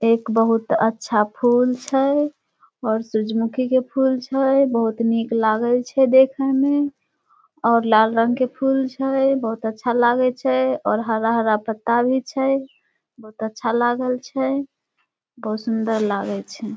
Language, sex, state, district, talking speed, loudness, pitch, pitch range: Maithili, female, Bihar, Samastipur, 140 wpm, -20 LUFS, 240 Hz, 225-265 Hz